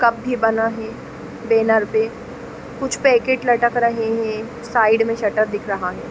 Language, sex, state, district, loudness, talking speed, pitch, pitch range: Hindi, female, Chhattisgarh, Raigarh, -19 LUFS, 165 wpm, 225 Hz, 220-240 Hz